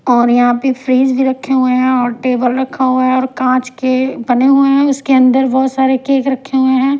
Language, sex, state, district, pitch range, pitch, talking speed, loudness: Hindi, female, Punjab, Pathankot, 255-265 Hz, 260 Hz, 230 wpm, -13 LUFS